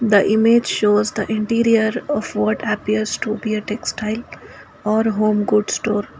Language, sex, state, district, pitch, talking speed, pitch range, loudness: English, female, Karnataka, Bangalore, 215 Hz, 155 wpm, 210-225 Hz, -19 LUFS